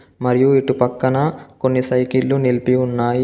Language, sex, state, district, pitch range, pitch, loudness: Telugu, male, Telangana, Komaram Bheem, 125-135 Hz, 130 Hz, -17 LUFS